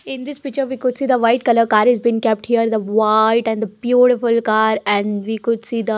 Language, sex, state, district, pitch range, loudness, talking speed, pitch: English, female, Haryana, Jhajjar, 220-250 Hz, -17 LUFS, 260 wpm, 230 Hz